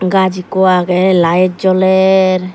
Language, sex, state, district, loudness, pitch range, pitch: Chakma, female, Tripura, Dhalai, -11 LUFS, 185-190 Hz, 185 Hz